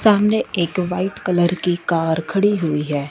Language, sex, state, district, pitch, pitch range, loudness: Hindi, female, Punjab, Fazilka, 175 Hz, 165-195 Hz, -19 LUFS